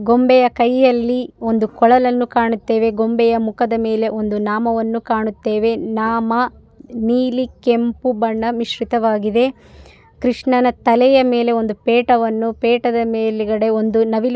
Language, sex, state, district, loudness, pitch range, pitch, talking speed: Kannada, female, Karnataka, Raichur, -16 LUFS, 225-245 Hz, 230 Hz, 110 wpm